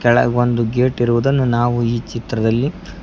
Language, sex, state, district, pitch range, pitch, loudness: Kannada, male, Karnataka, Koppal, 115-125 Hz, 120 Hz, -17 LUFS